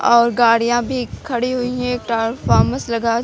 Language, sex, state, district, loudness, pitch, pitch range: Hindi, female, Uttar Pradesh, Lucknow, -18 LUFS, 240 Hz, 230-245 Hz